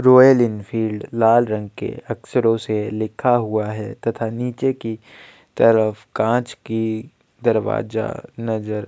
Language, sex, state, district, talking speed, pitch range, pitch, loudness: Hindi, male, Chhattisgarh, Kabirdham, 110 wpm, 110-120 Hz, 110 Hz, -20 LUFS